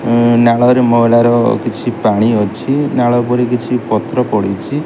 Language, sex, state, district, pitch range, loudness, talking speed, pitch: Odia, male, Odisha, Khordha, 115-125 Hz, -13 LUFS, 125 wpm, 120 Hz